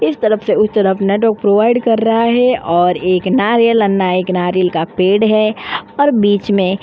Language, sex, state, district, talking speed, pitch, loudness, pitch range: Hindi, female, Uttar Pradesh, Jyotiba Phule Nagar, 200 wpm, 205 Hz, -13 LUFS, 185-225 Hz